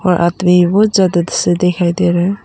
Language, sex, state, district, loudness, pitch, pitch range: Hindi, female, Arunachal Pradesh, Papum Pare, -13 LUFS, 180 Hz, 175-185 Hz